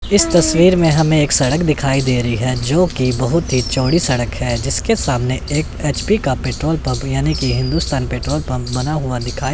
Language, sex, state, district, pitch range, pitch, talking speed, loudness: Hindi, male, Chandigarh, Chandigarh, 125-160 Hz, 135 Hz, 200 wpm, -16 LUFS